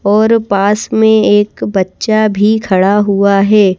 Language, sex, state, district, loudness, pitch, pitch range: Hindi, female, Madhya Pradesh, Bhopal, -11 LUFS, 205 Hz, 200-215 Hz